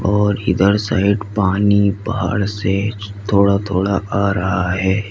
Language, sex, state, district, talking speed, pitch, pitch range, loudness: Hindi, male, Uttar Pradesh, Lalitpur, 130 wpm, 100 Hz, 95-100 Hz, -17 LUFS